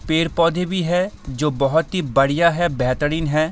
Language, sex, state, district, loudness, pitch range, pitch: Hindi, male, Bihar, Saharsa, -19 LUFS, 145-175 Hz, 160 Hz